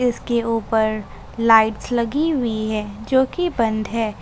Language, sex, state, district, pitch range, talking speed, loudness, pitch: Hindi, female, Jharkhand, Ranchi, 220-245 Hz, 140 wpm, -20 LUFS, 230 Hz